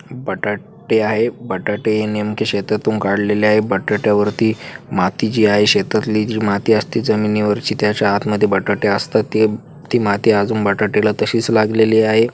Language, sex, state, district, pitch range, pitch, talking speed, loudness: Marathi, female, Maharashtra, Chandrapur, 105-110 Hz, 105 Hz, 140 wpm, -16 LUFS